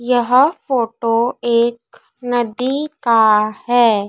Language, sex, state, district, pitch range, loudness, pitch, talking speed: Hindi, female, Madhya Pradesh, Dhar, 230-250 Hz, -16 LUFS, 240 Hz, 90 wpm